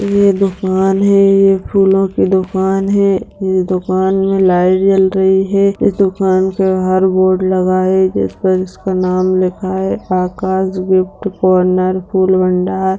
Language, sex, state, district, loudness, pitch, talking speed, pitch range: Hindi, female, Bihar, Begusarai, -13 LUFS, 190 Hz, 150 wpm, 185-195 Hz